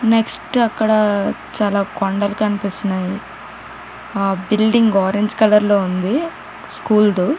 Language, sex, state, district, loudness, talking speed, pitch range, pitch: Telugu, female, Telangana, Karimnagar, -17 LUFS, 75 wpm, 200-225 Hz, 210 Hz